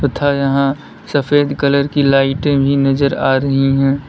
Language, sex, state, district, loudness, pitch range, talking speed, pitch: Hindi, male, Uttar Pradesh, Lalitpur, -14 LUFS, 135-140 Hz, 160 wpm, 140 Hz